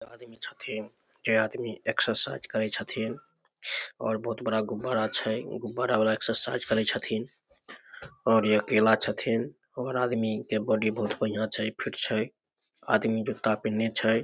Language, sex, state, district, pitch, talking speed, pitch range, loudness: Maithili, male, Bihar, Samastipur, 110 Hz, 150 wpm, 110-115 Hz, -28 LUFS